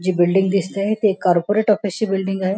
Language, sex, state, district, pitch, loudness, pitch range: Marathi, female, Maharashtra, Nagpur, 195 Hz, -18 LUFS, 185-205 Hz